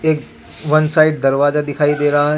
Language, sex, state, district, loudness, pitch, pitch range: Hindi, male, Jharkhand, Garhwa, -15 LUFS, 145 Hz, 145-155 Hz